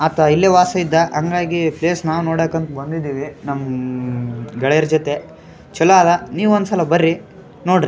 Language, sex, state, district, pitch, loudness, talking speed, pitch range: Kannada, male, Karnataka, Raichur, 160 Hz, -17 LUFS, 135 wpm, 140-170 Hz